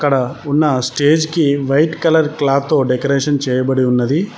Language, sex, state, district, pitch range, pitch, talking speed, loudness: Telugu, male, Telangana, Mahabubabad, 130-155 Hz, 140 Hz, 135 wpm, -15 LUFS